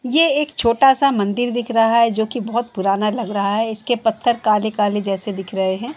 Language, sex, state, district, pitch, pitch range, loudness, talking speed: Hindi, female, Uttar Pradesh, Jalaun, 225 Hz, 205-240 Hz, -18 LUFS, 220 wpm